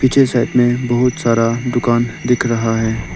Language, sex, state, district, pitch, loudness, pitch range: Hindi, male, Arunachal Pradesh, Lower Dibang Valley, 120 Hz, -15 LUFS, 115-125 Hz